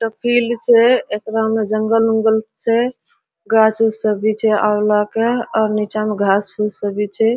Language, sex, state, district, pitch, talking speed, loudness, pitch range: Hindi, female, Bihar, Araria, 220 Hz, 130 wpm, -16 LUFS, 210-225 Hz